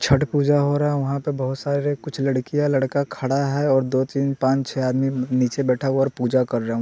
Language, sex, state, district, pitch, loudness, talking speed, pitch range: Hindi, male, Bihar, West Champaran, 135 Hz, -21 LUFS, 245 wpm, 130-140 Hz